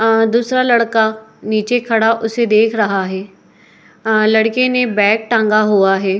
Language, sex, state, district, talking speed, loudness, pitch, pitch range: Hindi, female, Uttar Pradesh, Etah, 155 wpm, -14 LUFS, 220 Hz, 215-230 Hz